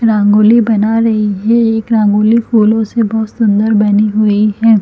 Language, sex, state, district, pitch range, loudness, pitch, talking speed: Hindi, female, Chhattisgarh, Bilaspur, 210-225 Hz, -11 LUFS, 220 Hz, 160 wpm